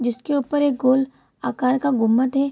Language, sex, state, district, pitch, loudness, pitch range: Hindi, female, Bihar, Kishanganj, 265 Hz, -21 LUFS, 250-280 Hz